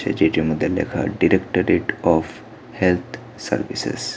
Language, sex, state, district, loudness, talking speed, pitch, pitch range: Bengali, male, Tripura, West Tripura, -20 LUFS, 115 wpm, 90 Hz, 80-110 Hz